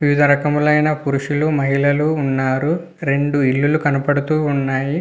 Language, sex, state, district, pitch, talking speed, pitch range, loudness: Telugu, male, Andhra Pradesh, Visakhapatnam, 145 Hz, 130 wpm, 140-150 Hz, -17 LUFS